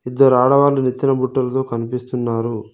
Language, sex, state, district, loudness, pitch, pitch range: Telugu, male, Telangana, Mahabubabad, -17 LUFS, 130 Hz, 125-135 Hz